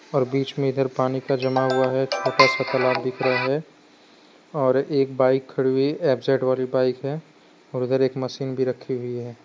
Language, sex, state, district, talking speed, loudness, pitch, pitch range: Hindi, male, Gujarat, Valsad, 205 wpm, -22 LUFS, 130 Hz, 130-135 Hz